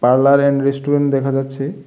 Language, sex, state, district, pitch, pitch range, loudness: Bengali, male, Tripura, West Tripura, 140 Hz, 135-140 Hz, -16 LUFS